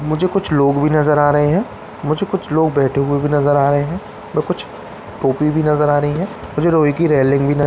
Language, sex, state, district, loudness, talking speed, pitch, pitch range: Hindi, male, Bihar, Katihar, -16 LUFS, 240 wpm, 150 Hz, 145-160 Hz